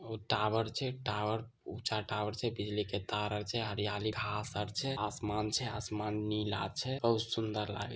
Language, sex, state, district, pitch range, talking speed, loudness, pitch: Maithili, male, Bihar, Samastipur, 105-115 Hz, 190 wpm, -36 LUFS, 105 Hz